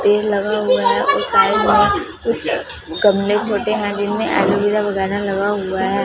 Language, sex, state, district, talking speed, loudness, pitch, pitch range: Hindi, female, Punjab, Fazilka, 170 wpm, -16 LUFS, 205 Hz, 200-225 Hz